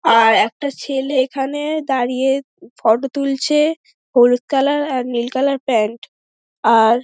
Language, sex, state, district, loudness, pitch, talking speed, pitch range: Bengali, female, West Bengal, Dakshin Dinajpur, -17 LUFS, 265 Hz, 120 wpm, 240-280 Hz